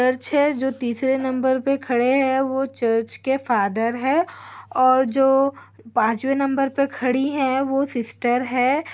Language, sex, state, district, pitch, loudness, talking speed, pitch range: Hindi, female, Chhattisgarh, Korba, 265 Hz, -21 LUFS, 155 wpm, 250-275 Hz